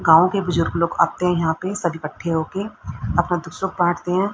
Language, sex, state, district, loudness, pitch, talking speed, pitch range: Hindi, female, Haryana, Rohtak, -21 LUFS, 175 Hz, 220 wpm, 165-185 Hz